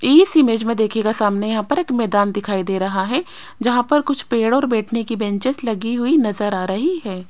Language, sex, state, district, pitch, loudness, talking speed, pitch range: Hindi, female, Rajasthan, Jaipur, 230 Hz, -18 LUFS, 220 wpm, 205-265 Hz